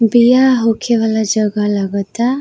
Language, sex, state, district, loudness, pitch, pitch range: Bhojpuri, female, Uttar Pradesh, Varanasi, -14 LUFS, 225 Hz, 210-240 Hz